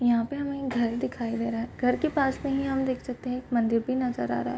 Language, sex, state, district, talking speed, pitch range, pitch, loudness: Hindi, female, Bihar, Bhagalpur, 315 wpm, 230-265 Hz, 250 Hz, -28 LUFS